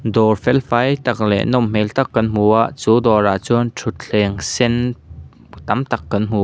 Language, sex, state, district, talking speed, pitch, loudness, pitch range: Mizo, male, Mizoram, Aizawl, 195 wpm, 110 Hz, -17 LUFS, 105-125 Hz